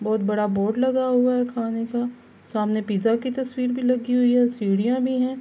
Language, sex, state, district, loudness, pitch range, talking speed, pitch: Urdu, female, Andhra Pradesh, Anantapur, -23 LUFS, 220-250 Hz, 210 wpm, 245 Hz